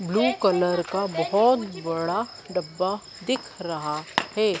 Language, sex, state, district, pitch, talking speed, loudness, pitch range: Hindi, female, Madhya Pradesh, Dhar, 190 Hz, 115 wpm, -25 LUFS, 170-215 Hz